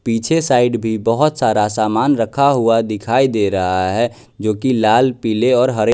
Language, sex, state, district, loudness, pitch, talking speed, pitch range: Hindi, male, Bihar, West Champaran, -16 LUFS, 115 Hz, 160 wpm, 110-125 Hz